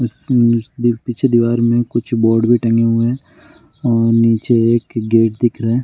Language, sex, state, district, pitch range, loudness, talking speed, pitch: Hindi, male, Bihar, Gaya, 115-120 Hz, -15 LUFS, 175 wpm, 120 Hz